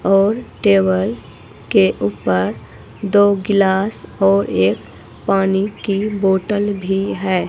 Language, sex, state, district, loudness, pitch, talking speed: Hindi, female, Himachal Pradesh, Shimla, -17 LUFS, 190 Hz, 105 wpm